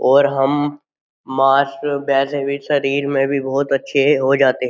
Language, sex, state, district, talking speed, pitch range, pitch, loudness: Hindi, male, Uttar Pradesh, Jyotiba Phule Nagar, 165 wpm, 135-140 Hz, 140 Hz, -17 LUFS